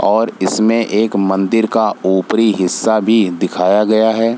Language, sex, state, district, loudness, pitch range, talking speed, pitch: Hindi, male, Bihar, Samastipur, -14 LUFS, 95-110 Hz, 150 wpm, 110 Hz